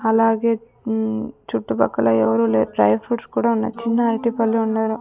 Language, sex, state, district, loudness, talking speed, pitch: Telugu, female, Andhra Pradesh, Sri Satya Sai, -20 LUFS, 120 wpm, 220 Hz